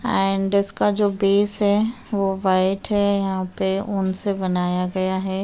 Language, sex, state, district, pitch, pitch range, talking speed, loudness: Hindi, female, Uttar Pradesh, Hamirpur, 195 Hz, 190-200 Hz, 165 wpm, -19 LUFS